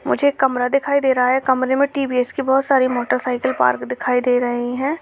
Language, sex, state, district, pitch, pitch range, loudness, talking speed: Hindi, female, Bihar, Jamui, 260 Hz, 245-270 Hz, -18 LUFS, 215 wpm